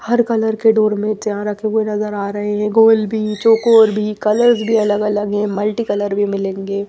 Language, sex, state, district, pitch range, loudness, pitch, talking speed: Hindi, female, Maharashtra, Mumbai Suburban, 205-220 Hz, -16 LUFS, 210 Hz, 200 wpm